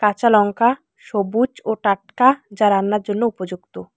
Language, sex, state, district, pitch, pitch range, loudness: Bengali, female, West Bengal, Alipurduar, 210 Hz, 200-235 Hz, -18 LUFS